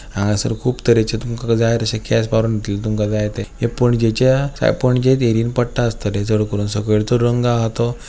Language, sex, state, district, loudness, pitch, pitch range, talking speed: Konkani, male, Goa, North and South Goa, -18 LUFS, 115 Hz, 105-120 Hz, 180 wpm